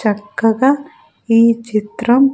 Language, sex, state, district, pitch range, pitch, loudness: Telugu, female, Andhra Pradesh, Sri Satya Sai, 220-270 Hz, 230 Hz, -15 LUFS